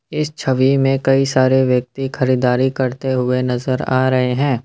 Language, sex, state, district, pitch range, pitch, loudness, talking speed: Hindi, male, Assam, Kamrup Metropolitan, 125-135 Hz, 130 Hz, -17 LUFS, 165 wpm